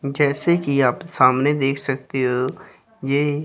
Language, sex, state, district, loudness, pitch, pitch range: Hindi, female, Chandigarh, Chandigarh, -20 LUFS, 140 Hz, 135-150 Hz